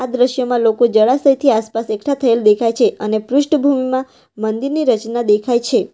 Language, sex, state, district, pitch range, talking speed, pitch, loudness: Gujarati, female, Gujarat, Valsad, 225-265 Hz, 140 wpm, 245 Hz, -15 LUFS